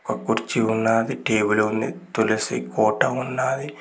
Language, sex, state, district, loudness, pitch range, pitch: Telugu, male, Telangana, Mahabubabad, -22 LUFS, 110-130 Hz, 110 Hz